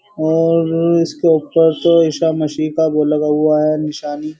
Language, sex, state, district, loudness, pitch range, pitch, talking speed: Hindi, male, Uttar Pradesh, Jyotiba Phule Nagar, -15 LUFS, 155-165 Hz, 155 Hz, 165 wpm